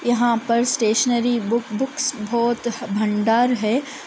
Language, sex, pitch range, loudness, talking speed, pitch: Hindi, female, 225-245 Hz, -20 LUFS, 120 wpm, 235 Hz